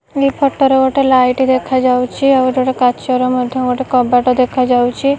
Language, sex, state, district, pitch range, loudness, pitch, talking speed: Odia, female, Odisha, Nuapada, 250-265 Hz, -13 LUFS, 255 Hz, 175 wpm